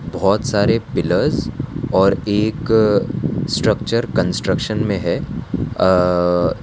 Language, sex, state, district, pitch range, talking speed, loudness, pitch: Hindi, male, Gujarat, Valsad, 90-110 Hz, 100 wpm, -18 LUFS, 100 Hz